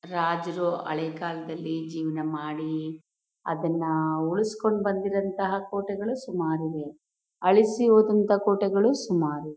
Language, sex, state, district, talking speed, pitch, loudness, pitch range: Kannada, female, Karnataka, Mysore, 105 wpm, 170 Hz, -26 LUFS, 160-200 Hz